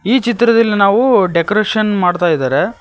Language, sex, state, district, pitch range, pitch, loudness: Kannada, male, Karnataka, Koppal, 190-235 Hz, 215 Hz, -13 LUFS